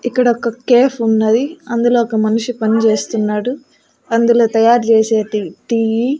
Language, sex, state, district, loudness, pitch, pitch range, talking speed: Telugu, female, Andhra Pradesh, Annamaya, -14 LUFS, 230 Hz, 220-245 Hz, 125 wpm